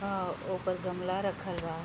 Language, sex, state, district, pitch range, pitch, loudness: Bhojpuri, female, Uttar Pradesh, Gorakhpur, 180-190 Hz, 185 Hz, -34 LUFS